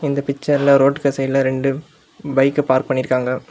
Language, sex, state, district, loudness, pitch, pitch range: Tamil, male, Tamil Nadu, Kanyakumari, -17 LUFS, 135 Hz, 135-140 Hz